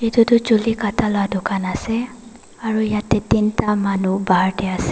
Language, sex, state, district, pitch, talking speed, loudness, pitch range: Nagamese, female, Nagaland, Dimapur, 210 Hz, 185 wpm, -19 LUFS, 195-225 Hz